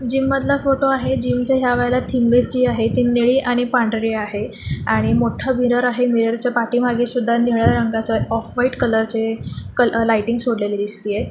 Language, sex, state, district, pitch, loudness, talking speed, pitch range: Marathi, female, Maharashtra, Dhule, 245 Hz, -18 LUFS, 165 wpm, 225-250 Hz